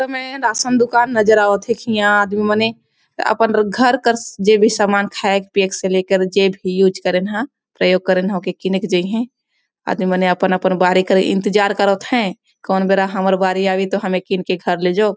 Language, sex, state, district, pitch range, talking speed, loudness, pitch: Sadri, female, Chhattisgarh, Jashpur, 185-220 Hz, 210 wpm, -16 LUFS, 195 Hz